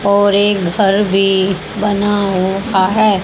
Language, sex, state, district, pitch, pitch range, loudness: Hindi, male, Haryana, Jhajjar, 200 Hz, 195-205 Hz, -14 LUFS